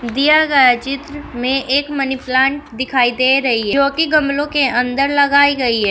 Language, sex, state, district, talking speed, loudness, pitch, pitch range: Hindi, female, Uttar Pradesh, Shamli, 195 wpm, -15 LUFS, 270 Hz, 255-285 Hz